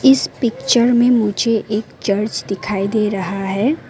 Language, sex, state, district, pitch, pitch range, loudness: Hindi, female, Arunachal Pradesh, Lower Dibang Valley, 215 Hz, 200-240 Hz, -17 LUFS